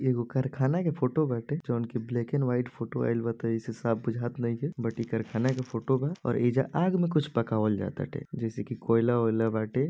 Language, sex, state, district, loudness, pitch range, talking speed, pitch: Bhojpuri, male, Uttar Pradesh, Deoria, -29 LUFS, 115-135 Hz, 220 wpm, 120 Hz